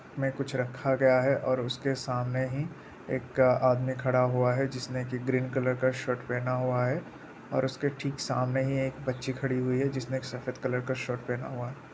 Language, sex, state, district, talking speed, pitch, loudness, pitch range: Hindi, male, Bihar, Araria, 210 wpm, 130 Hz, -30 LUFS, 125-135 Hz